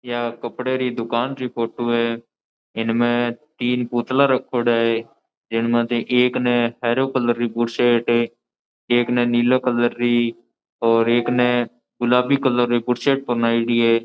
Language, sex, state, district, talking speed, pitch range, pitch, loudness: Marwari, male, Rajasthan, Nagaur, 145 wpm, 120-125 Hz, 120 Hz, -20 LUFS